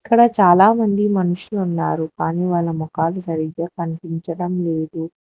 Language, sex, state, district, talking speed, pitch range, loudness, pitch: Telugu, female, Telangana, Hyderabad, 115 wpm, 165-190 Hz, -19 LUFS, 170 Hz